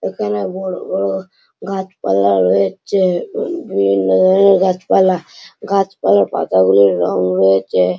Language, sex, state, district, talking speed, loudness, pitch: Bengali, male, West Bengal, Malda, 115 wpm, -15 LUFS, 100 Hz